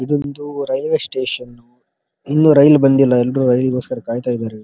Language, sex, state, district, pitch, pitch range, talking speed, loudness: Kannada, male, Karnataka, Dharwad, 130 Hz, 125-145 Hz, 170 wpm, -16 LUFS